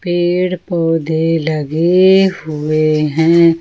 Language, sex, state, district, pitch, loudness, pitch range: Hindi, female, Jharkhand, Ranchi, 165 Hz, -13 LUFS, 155-175 Hz